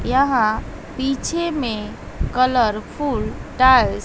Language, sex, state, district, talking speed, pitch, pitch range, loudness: Hindi, female, Bihar, West Champaran, 90 wpm, 255 Hz, 220-275 Hz, -19 LUFS